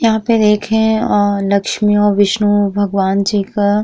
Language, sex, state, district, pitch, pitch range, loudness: Bhojpuri, female, Bihar, East Champaran, 205 Hz, 200-215 Hz, -14 LUFS